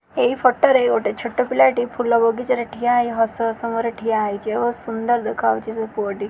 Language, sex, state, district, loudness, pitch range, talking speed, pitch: Odia, female, Odisha, Khordha, -20 LUFS, 220-240 Hz, 230 wpm, 230 Hz